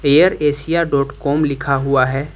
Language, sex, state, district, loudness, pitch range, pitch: Hindi, male, Uttar Pradesh, Lucknow, -16 LUFS, 140-150 Hz, 140 Hz